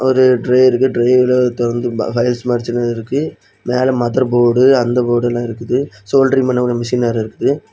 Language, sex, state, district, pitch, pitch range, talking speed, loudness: Tamil, male, Tamil Nadu, Kanyakumari, 125 Hz, 120-130 Hz, 140 wpm, -15 LUFS